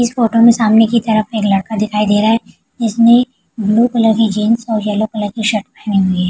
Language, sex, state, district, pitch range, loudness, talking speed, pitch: Hindi, female, Bihar, Araria, 210-230 Hz, -13 LUFS, 230 wpm, 220 Hz